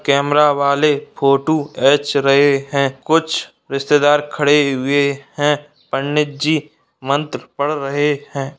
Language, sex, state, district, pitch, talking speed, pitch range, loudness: Hindi, male, Bihar, Saran, 145 Hz, 110 wpm, 140-150 Hz, -16 LUFS